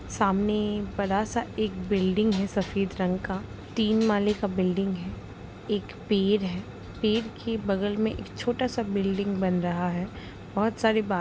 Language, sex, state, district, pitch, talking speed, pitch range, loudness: Hindi, female, Bihar, Sitamarhi, 200 Hz, 170 wpm, 190-215 Hz, -27 LUFS